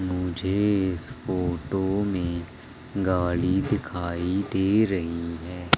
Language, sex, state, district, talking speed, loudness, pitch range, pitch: Hindi, male, Madhya Pradesh, Umaria, 95 wpm, -26 LUFS, 85-95 Hz, 90 Hz